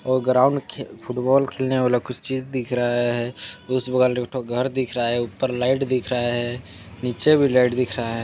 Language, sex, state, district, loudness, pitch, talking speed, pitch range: Hindi, male, Chhattisgarh, Balrampur, -22 LUFS, 125 Hz, 220 wpm, 120-130 Hz